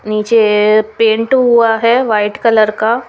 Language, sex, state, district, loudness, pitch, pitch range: Hindi, female, Chandigarh, Chandigarh, -11 LUFS, 225 Hz, 215-235 Hz